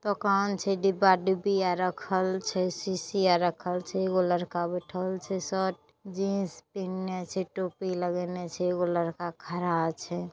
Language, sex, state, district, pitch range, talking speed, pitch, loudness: Maithili, female, Bihar, Saharsa, 175-190 Hz, 175 wpm, 185 Hz, -29 LUFS